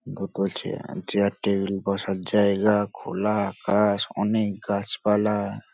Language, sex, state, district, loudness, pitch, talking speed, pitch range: Bengali, male, West Bengal, North 24 Parganas, -25 LUFS, 100 Hz, 95 wpm, 100-105 Hz